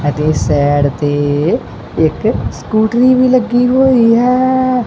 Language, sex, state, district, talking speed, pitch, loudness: Punjabi, male, Punjab, Kapurthala, 110 wpm, 230 Hz, -12 LUFS